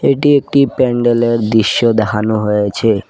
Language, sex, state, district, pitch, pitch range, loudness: Bengali, male, Assam, Kamrup Metropolitan, 115 Hz, 105-120 Hz, -13 LUFS